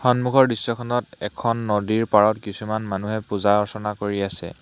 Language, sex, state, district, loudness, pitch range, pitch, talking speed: Assamese, male, Assam, Hailakandi, -22 LUFS, 105-115 Hz, 110 Hz, 130 wpm